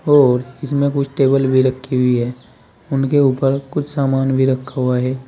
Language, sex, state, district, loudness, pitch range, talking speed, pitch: Hindi, male, Uttar Pradesh, Saharanpur, -17 LUFS, 130-140 Hz, 180 wpm, 135 Hz